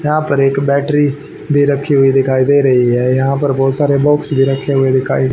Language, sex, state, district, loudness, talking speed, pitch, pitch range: Hindi, male, Haryana, Charkhi Dadri, -13 LUFS, 225 wpm, 140 Hz, 135-145 Hz